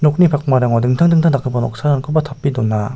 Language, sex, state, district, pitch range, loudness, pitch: Garo, male, Meghalaya, South Garo Hills, 125-150 Hz, -15 LUFS, 140 Hz